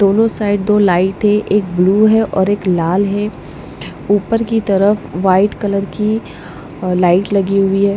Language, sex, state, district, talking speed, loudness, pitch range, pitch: Hindi, female, Punjab, Pathankot, 165 wpm, -14 LUFS, 185-210 Hz, 200 Hz